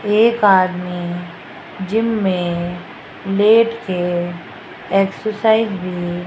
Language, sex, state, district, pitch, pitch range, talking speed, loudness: Hindi, female, Rajasthan, Jaipur, 190 Hz, 175-215 Hz, 85 wpm, -17 LUFS